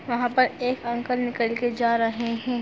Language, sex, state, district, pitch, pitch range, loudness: Hindi, female, Chhattisgarh, Sarguja, 240 Hz, 235-250 Hz, -24 LUFS